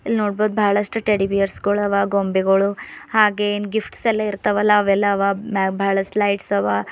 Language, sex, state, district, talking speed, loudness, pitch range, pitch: Kannada, female, Karnataka, Bidar, 165 wpm, -19 LUFS, 195-210 Hz, 205 Hz